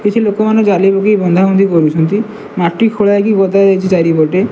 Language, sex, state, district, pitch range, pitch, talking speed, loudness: Odia, male, Odisha, Malkangiri, 180-210 Hz, 195 Hz, 160 wpm, -11 LUFS